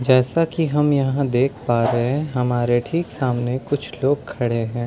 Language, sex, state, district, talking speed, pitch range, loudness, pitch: Hindi, male, Delhi, New Delhi, 185 wpm, 120-145 Hz, -20 LUFS, 130 Hz